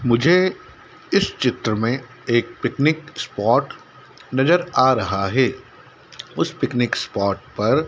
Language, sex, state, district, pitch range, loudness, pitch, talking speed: Hindi, male, Madhya Pradesh, Dhar, 115-150 Hz, -20 LUFS, 130 Hz, 115 wpm